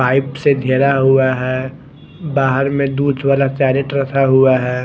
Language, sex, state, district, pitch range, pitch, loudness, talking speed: Hindi, male, Odisha, Khordha, 130-140 Hz, 135 Hz, -15 LUFS, 160 wpm